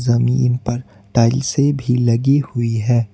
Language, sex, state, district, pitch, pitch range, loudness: Hindi, male, Jharkhand, Ranchi, 120 Hz, 115-130 Hz, -17 LUFS